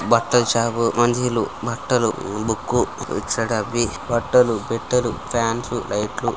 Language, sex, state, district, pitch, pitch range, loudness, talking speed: Telugu, male, Andhra Pradesh, Guntur, 115 Hz, 115-120 Hz, -21 LUFS, 120 wpm